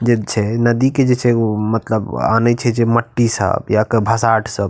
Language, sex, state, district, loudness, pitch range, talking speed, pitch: Maithili, male, Bihar, Madhepura, -16 LUFS, 110-120 Hz, 205 wpm, 115 Hz